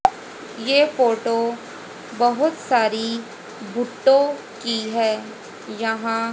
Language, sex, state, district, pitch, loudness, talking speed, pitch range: Hindi, female, Haryana, Jhajjar, 230 Hz, -21 LUFS, 85 wpm, 225-265 Hz